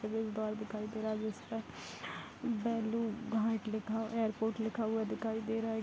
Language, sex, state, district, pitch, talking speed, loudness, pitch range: Hindi, female, Bihar, Vaishali, 220 Hz, 155 wpm, -37 LUFS, 215-225 Hz